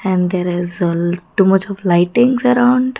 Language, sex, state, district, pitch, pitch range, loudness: English, female, Karnataka, Bangalore, 185 Hz, 175-240 Hz, -15 LUFS